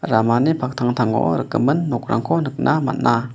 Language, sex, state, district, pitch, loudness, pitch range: Garo, male, Meghalaya, West Garo Hills, 120 Hz, -19 LUFS, 115-125 Hz